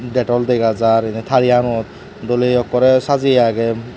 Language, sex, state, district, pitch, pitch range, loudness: Chakma, male, Tripura, Dhalai, 120 Hz, 115-125 Hz, -15 LUFS